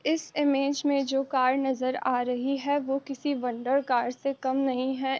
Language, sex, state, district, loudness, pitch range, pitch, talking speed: Hindi, female, Uttarakhand, Tehri Garhwal, -27 LUFS, 255-280 Hz, 270 Hz, 195 wpm